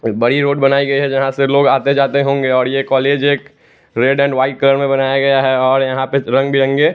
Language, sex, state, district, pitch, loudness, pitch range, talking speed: Hindi, male, Chandigarh, Chandigarh, 135 Hz, -14 LUFS, 135-140 Hz, 240 wpm